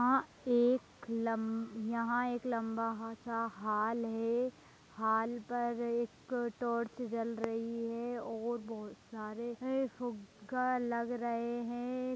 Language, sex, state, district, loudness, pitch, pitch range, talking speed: Hindi, female, Bihar, Begusarai, -37 LUFS, 235 Hz, 225-245 Hz, 125 wpm